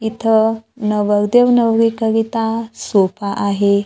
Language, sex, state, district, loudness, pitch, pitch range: Marathi, female, Maharashtra, Gondia, -16 LUFS, 220 Hz, 205-225 Hz